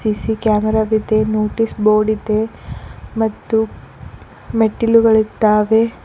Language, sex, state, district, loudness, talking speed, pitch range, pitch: Kannada, female, Karnataka, Koppal, -16 LUFS, 80 wpm, 215-220 Hz, 215 Hz